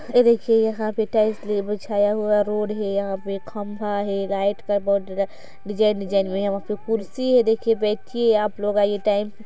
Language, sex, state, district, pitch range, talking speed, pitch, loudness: Hindi, female, Chhattisgarh, Sarguja, 200-220 Hz, 150 wpm, 210 Hz, -22 LUFS